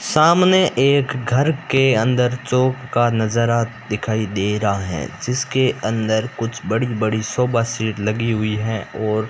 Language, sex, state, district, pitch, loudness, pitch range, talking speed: Hindi, male, Rajasthan, Bikaner, 115 Hz, -19 LUFS, 110-125 Hz, 155 wpm